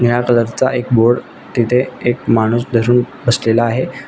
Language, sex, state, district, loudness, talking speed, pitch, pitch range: Marathi, male, Maharashtra, Nagpur, -15 LUFS, 160 wpm, 120 Hz, 115-125 Hz